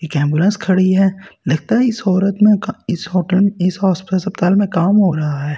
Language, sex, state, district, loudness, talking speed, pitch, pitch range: Hindi, male, Delhi, New Delhi, -15 LUFS, 215 wpm, 190 Hz, 175-200 Hz